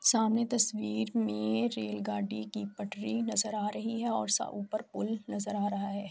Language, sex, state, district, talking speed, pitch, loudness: Urdu, female, Andhra Pradesh, Anantapur, 175 wpm, 205 Hz, -32 LUFS